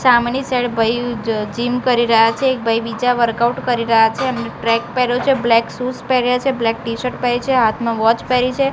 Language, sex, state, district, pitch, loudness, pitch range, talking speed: Gujarati, female, Gujarat, Gandhinagar, 240 Hz, -17 LUFS, 230-250 Hz, 215 wpm